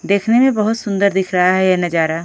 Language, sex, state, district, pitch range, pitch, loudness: Hindi, female, Odisha, Khordha, 180-210 Hz, 190 Hz, -15 LUFS